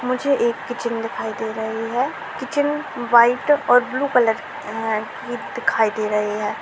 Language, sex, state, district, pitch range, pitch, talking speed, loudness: Hindi, female, Uttar Pradesh, Jalaun, 220-260 Hz, 235 Hz, 170 wpm, -21 LUFS